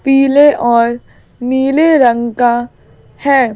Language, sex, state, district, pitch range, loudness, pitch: Hindi, female, Madhya Pradesh, Bhopal, 240-275 Hz, -11 LUFS, 255 Hz